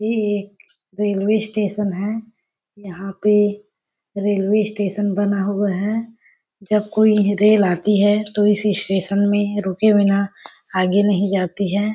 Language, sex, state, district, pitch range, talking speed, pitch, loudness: Hindi, female, Chhattisgarh, Balrampur, 200-210 Hz, 135 wpm, 205 Hz, -18 LUFS